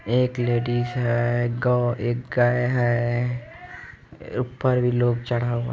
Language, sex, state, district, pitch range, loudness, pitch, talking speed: Hindi, male, Bihar, East Champaran, 120-125 Hz, -23 LUFS, 120 Hz, 135 wpm